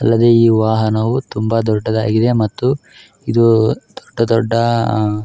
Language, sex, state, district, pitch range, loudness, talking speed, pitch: Kannada, male, Karnataka, Raichur, 110-115 Hz, -15 LUFS, 125 wpm, 115 Hz